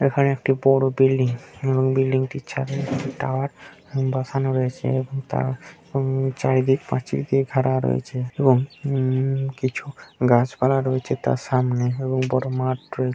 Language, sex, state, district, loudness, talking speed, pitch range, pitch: Bengali, male, West Bengal, Dakshin Dinajpur, -22 LUFS, 145 wpm, 130-135 Hz, 130 Hz